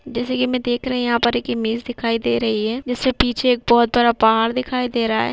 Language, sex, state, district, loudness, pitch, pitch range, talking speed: Hindi, female, Uttarakhand, Uttarkashi, -19 LUFS, 240 Hz, 230-250 Hz, 270 wpm